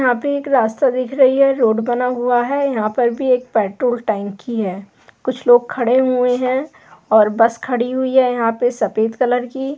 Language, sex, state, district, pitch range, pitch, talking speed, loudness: Hindi, female, Bihar, Gaya, 225-260 Hz, 245 Hz, 200 wpm, -17 LUFS